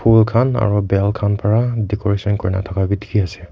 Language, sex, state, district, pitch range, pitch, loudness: Nagamese, male, Nagaland, Kohima, 100-110 Hz, 105 Hz, -17 LUFS